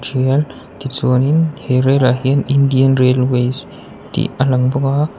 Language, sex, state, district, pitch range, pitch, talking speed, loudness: Mizo, male, Mizoram, Aizawl, 130-140 Hz, 135 Hz, 125 wpm, -15 LUFS